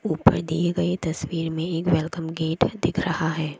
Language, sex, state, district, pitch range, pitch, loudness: Hindi, female, Assam, Kamrup Metropolitan, 160-170 Hz, 165 Hz, -24 LUFS